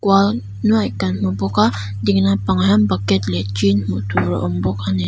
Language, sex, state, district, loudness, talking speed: Mizo, female, Mizoram, Aizawl, -18 LUFS, 190 wpm